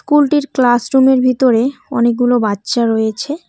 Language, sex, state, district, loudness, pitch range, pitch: Bengali, female, West Bengal, Cooch Behar, -14 LUFS, 235-275 Hz, 250 Hz